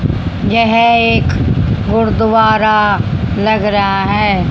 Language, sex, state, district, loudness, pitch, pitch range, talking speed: Hindi, female, Haryana, Jhajjar, -12 LUFS, 210 Hz, 195-225 Hz, 80 wpm